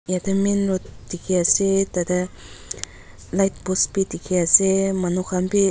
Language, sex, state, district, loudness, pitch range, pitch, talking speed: Nagamese, female, Nagaland, Dimapur, -20 LUFS, 180-195 Hz, 185 Hz, 135 wpm